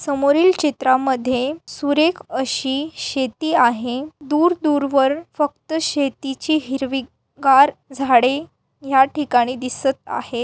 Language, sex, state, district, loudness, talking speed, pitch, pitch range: Marathi, female, Maharashtra, Aurangabad, -19 LUFS, 100 wpm, 275 Hz, 265-300 Hz